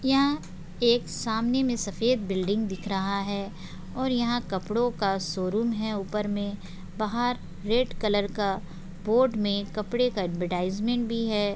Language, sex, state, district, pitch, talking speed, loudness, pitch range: Hindi, female, Bihar, Jahanabad, 210 Hz, 150 wpm, -27 LUFS, 195-235 Hz